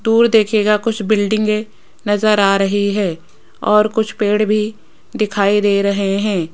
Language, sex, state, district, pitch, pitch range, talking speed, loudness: Hindi, female, Rajasthan, Jaipur, 210 Hz, 200-215 Hz, 145 wpm, -15 LUFS